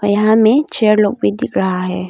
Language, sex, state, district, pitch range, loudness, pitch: Hindi, female, Arunachal Pradesh, Longding, 185-220 Hz, -14 LUFS, 205 Hz